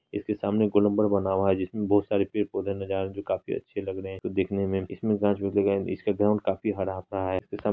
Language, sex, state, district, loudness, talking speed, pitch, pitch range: Hindi, female, Bihar, Araria, -27 LUFS, 250 wpm, 100 Hz, 95-105 Hz